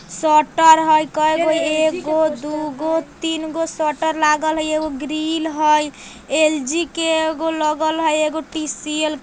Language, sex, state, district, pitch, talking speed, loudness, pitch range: Bajjika, female, Bihar, Vaishali, 310 Hz, 145 wpm, -18 LUFS, 305-320 Hz